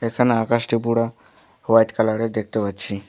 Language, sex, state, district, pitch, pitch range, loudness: Bengali, male, West Bengal, Alipurduar, 115 Hz, 110-115 Hz, -21 LUFS